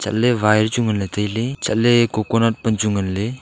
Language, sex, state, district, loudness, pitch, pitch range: Wancho, male, Arunachal Pradesh, Longding, -18 LUFS, 110 Hz, 105-120 Hz